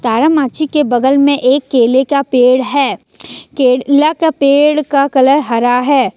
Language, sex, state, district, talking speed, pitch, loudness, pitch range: Hindi, female, Jharkhand, Ranchi, 155 wpm, 275 Hz, -11 LUFS, 255-290 Hz